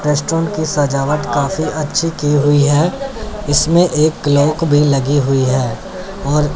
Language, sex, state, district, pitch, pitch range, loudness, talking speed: Hindi, male, Chandigarh, Chandigarh, 150 Hz, 145-165 Hz, -15 LUFS, 145 wpm